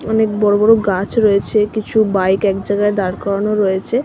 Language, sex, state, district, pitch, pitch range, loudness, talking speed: Bengali, female, West Bengal, Malda, 205 Hz, 195-215 Hz, -15 LUFS, 105 wpm